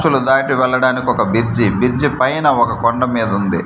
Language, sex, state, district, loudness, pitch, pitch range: Telugu, male, Andhra Pradesh, Manyam, -15 LUFS, 125 Hz, 115-135 Hz